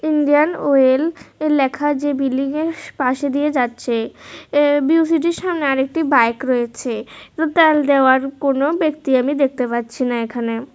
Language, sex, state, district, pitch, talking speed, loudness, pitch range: Bengali, female, Tripura, West Tripura, 280 Hz, 125 wpm, -17 LUFS, 255-305 Hz